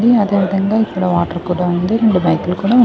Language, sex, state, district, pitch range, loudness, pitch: Telugu, female, Andhra Pradesh, Manyam, 180-220 Hz, -15 LUFS, 190 Hz